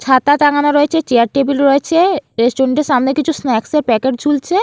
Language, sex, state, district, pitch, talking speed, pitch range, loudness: Bengali, female, West Bengal, Jalpaiguri, 280 Hz, 180 wpm, 260-295 Hz, -14 LUFS